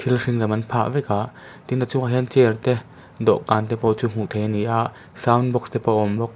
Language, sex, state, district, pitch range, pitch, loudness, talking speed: Mizo, male, Mizoram, Aizawl, 110-125 Hz, 115 Hz, -21 LUFS, 285 wpm